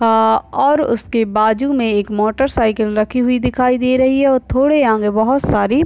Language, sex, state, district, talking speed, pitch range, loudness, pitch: Hindi, male, Bihar, Madhepura, 195 wpm, 220-265 Hz, -15 LUFS, 245 Hz